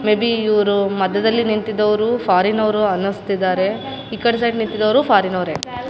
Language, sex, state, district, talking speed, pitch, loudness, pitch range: Kannada, female, Karnataka, Raichur, 150 wpm, 215 Hz, -17 LUFS, 200-220 Hz